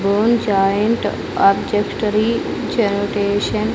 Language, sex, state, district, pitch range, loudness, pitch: Telugu, female, Andhra Pradesh, Sri Satya Sai, 200-220 Hz, -17 LUFS, 205 Hz